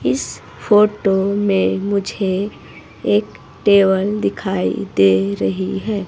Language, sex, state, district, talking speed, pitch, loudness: Hindi, female, Himachal Pradesh, Shimla, 100 wpm, 185 Hz, -17 LUFS